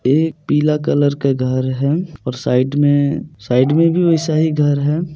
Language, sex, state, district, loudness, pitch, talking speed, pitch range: Hindi, male, Bihar, Supaul, -16 LUFS, 145 Hz, 185 wpm, 135-155 Hz